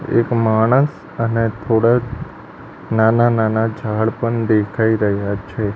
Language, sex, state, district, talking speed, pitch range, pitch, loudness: Gujarati, male, Gujarat, Gandhinagar, 115 wpm, 110-115 Hz, 110 Hz, -17 LUFS